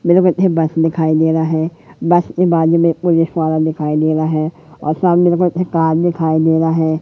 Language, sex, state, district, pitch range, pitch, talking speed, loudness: Hindi, female, Madhya Pradesh, Katni, 160-175 Hz, 160 Hz, 190 wpm, -15 LUFS